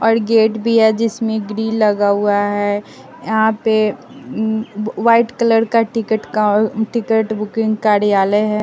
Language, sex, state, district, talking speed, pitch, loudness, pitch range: Hindi, female, Bihar, West Champaran, 145 wpm, 220 Hz, -16 LUFS, 210-225 Hz